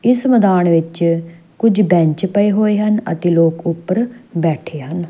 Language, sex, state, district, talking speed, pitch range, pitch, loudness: Punjabi, female, Punjab, Fazilka, 155 wpm, 165-210 Hz, 175 Hz, -15 LUFS